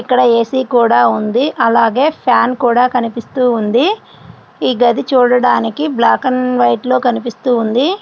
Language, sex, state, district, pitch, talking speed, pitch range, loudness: Telugu, female, Andhra Pradesh, Guntur, 245 Hz, 140 wpm, 235-255 Hz, -13 LUFS